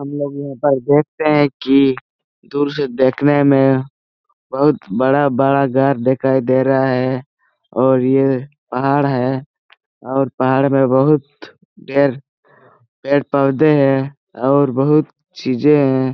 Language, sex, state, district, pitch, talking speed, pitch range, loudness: Hindi, male, Jharkhand, Sahebganj, 135 Hz, 135 wpm, 130-145 Hz, -16 LUFS